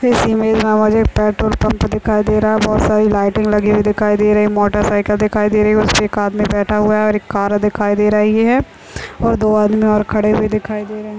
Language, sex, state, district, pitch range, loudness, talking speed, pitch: Hindi, female, Chhattisgarh, Raigarh, 210-215 Hz, -14 LUFS, 255 wpm, 210 Hz